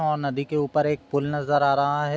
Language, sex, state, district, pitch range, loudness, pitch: Hindi, male, Bihar, Sitamarhi, 140-150 Hz, -24 LUFS, 145 Hz